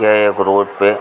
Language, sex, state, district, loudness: Hindi, male, Uttar Pradesh, Ghazipur, -14 LUFS